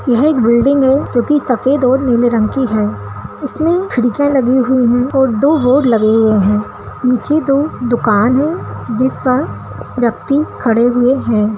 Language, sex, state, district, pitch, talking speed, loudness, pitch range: Hindi, female, Bihar, Darbhanga, 250 Hz, 160 wpm, -13 LUFS, 235-275 Hz